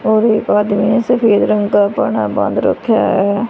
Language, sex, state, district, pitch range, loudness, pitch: Hindi, female, Haryana, Charkhi Dadri, 205-235 Hz, -14 LUFS, 215 Hz